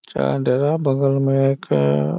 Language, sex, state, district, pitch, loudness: Hindi, male, Bihar, Muzaffarpur, 135 Hz, -19 LUFS